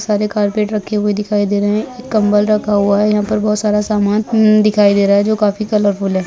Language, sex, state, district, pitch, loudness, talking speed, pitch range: Hindi, female, Bihar, Jahanabad, 210 Hz, -14 LUFS, 240 wpm, 205-215 Hz